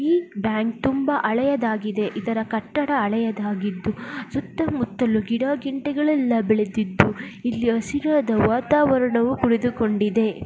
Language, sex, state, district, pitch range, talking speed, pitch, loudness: Kannada, female, Karnataka, Dakshina Kannada, 215-275 Hz, 85 wpm, 230 Hz, -22 LUFS